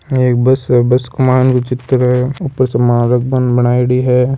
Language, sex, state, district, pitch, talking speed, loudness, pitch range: Marwari, male, Rajasthan, Nagaur, 125 Hz, 220 wpm, -13 LUFS, 125-130 Hz